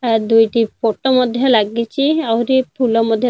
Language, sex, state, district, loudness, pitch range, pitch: Odia, female, Odisha, Nuapada, -15 LUFS, 225-260 Hz, 235 Hz